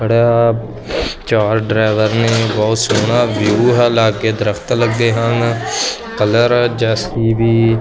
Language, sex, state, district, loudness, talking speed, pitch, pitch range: Punjabi, male, Punjab, Kapurthala, -14 LUFS, 105 wpm, 115 Hz, 110-115 Hz